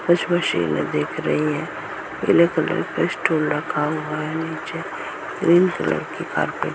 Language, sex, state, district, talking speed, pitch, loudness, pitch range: Hindi, female, Chhattisgarh, Rajnandgaon, 160 wpm, 170 Hz, -22 LUFS, 170-175 Hz